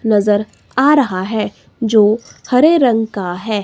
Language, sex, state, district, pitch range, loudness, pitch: Hindi, female, Himachal Pradesh, Shimla, 210-250 Hz, -15 LUFS, 220 Hz